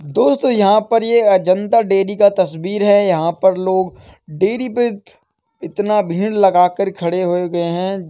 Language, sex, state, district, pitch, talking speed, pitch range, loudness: Hindi, male, Uttar Pradesh, Etah, 195 Hz, 165 wpm, 180-210 Hz, -15 LUFS